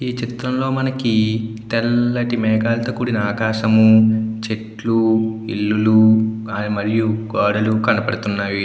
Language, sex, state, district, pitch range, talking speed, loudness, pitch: Telugu, male, Andhra Pradesh, Anantapur, 110-115 Hz, 90 wpm, -18 LUFS, 110 Hz